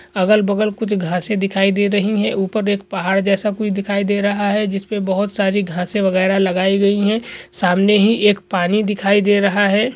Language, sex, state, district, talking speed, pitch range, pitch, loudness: Hindi, male, Bihar, Jamui, 195 wpm, 195-210 Hz, 200 Hz, -17 LUFS